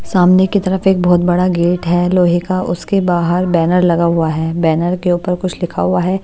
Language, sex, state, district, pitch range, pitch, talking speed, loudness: Hindi, female, Haryana, Jhajjar, 175-185 Hz, 180 Hz, 230 wpm, -14 LUFS